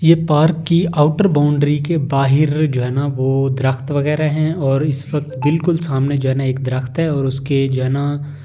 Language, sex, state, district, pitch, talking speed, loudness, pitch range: Hindi, male, Delhi, New Delhi, 145 Hz, 215 wpm, -17 LUFS, 135-155 Hz